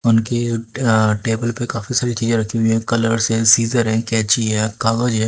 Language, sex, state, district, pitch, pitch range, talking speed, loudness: Hindi, male, Haryana, Jhajjar, 115 Hz, 110-115 Hz, 205 wpm, -17 LUFS